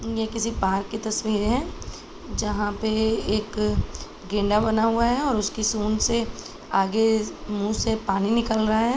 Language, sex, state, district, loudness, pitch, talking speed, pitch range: Hindi, male, Bihar, Araria, -24 LUFS, 220 Hz, 160 wpm, 210-225 Hz